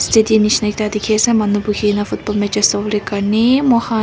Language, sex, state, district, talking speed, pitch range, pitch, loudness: Nagamese, female, Nagaland, Kohima, 180 wpm, 210-220 Hz, 210 Hz, -15 LUFS